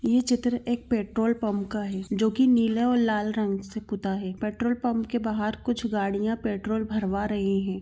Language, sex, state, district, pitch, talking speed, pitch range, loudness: Hindi, female, Chhattisgarh, Bilaspur, 220 Hz, 190 wpm, 205-240 Hz, -26 LUFS